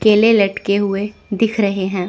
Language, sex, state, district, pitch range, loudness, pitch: Hindi, female, Chandigarh, Chandigarh, 195-215 Hz, -16 LUFS, 200 Hz